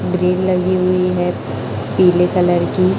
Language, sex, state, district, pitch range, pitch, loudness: Hindi, female, Chhattisgarh, Raipur, 180-185 Hz, 180 Hz, -16 LUFS